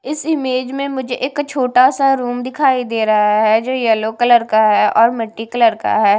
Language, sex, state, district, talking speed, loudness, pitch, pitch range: Hindi, female, Punjab, Kapurthala, 215 wpm, -15 LUFS, 245 Hz, 220-265 Hz